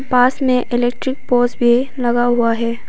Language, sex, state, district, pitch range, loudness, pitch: Hindi, female, Arunachal Pradesh, Papum Pare, 240-250 Hz, -16 LUFS, 245 Hz